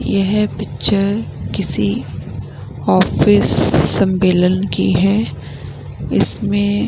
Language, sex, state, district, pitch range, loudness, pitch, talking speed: Hindi, female, Bihar, Vaishali, 190-205 Hz, -16 LUFS, 200 Hz, 80 wpm